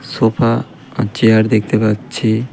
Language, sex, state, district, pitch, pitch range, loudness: Bengali, male, West Bengal, Cooch Behar, 110 Hz, 110-115 Hz, -15 LUFS